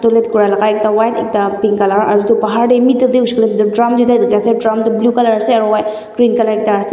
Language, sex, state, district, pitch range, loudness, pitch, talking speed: Nagamese, female, Nagaland, Dimapur, 215-235 Hz, -12 LUFS, 225 Hz, 250 wpm